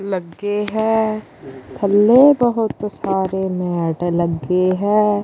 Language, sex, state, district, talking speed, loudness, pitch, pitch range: Punjabi, female, Punjab, Kapurthala, 90 wpm, -17 LUFS, 200 Hz, 175-215 Hz